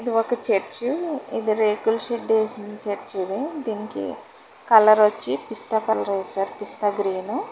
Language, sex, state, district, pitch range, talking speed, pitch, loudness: Telugu, female, Telangana, Hyderabad, 205-235 Hz, 125 wpm, 215 Hz, -20 LUFS